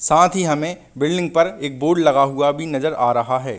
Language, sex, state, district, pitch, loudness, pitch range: Hindi, male, Uttar Pradesh, Muzaffarnagar, 150 Hz, -18 LUFS, 135-165 Hz